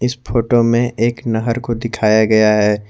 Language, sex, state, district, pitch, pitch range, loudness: Hindi, male, Jharkhand, Garhwa, 115 Hz, 110-120 Hz, -15 LUFS